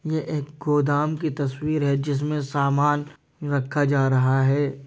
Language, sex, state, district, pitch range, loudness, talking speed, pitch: Hindi, male, Uttar Pradesh, Jyotiba Phule Nagar, 140-150 Hz, -23 LUFS, 150 wpm, 145 Hz